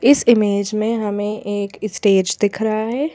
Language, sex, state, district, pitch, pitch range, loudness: Hindi, female, Madhya Pradesh, Bhopal, 215 Hz, 205-225 Hz, -18 LUFS